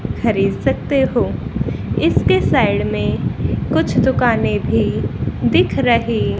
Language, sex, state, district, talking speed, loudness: Hindi, female, Haryana, Rohtak, 105 wpm, -17 LUFS